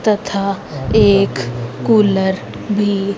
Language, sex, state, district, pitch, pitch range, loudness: Hindi, female, Haryana, Rohtak, 200 Hz, 190-205 Hz, -16 LUFS